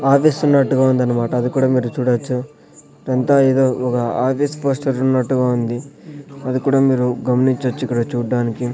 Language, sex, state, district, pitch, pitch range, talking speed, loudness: Telugu, male, Andhra Pradesh, Sri Satya Sai, 130 Hz, 125-135 Hz, 130 wpm, -17 LUFS